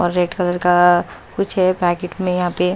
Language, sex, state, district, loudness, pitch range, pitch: Hindi, female, Maharashtra, Mumbai Suburban, -17 LUFS, 175-180 Hz, 180 Hz